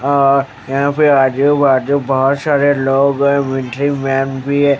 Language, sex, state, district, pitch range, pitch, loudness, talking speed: Hindi, male, Haryana, Jhajjar, 135-140 Hz, 140 Hz, -14 LUFS, 160 wpm